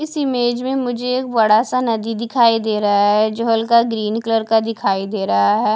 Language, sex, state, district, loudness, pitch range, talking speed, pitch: Hindi, female, Haryana, Charkhi Dadri, -17 LUFS, 215-240 Hz, 220 wpm, 225 Hz